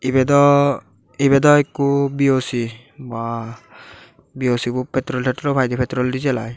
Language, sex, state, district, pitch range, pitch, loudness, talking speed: Chakma, male, Tripura, Dhalai, 120-140 Hz, 130 Hz, -18 LUFS, 120 wpm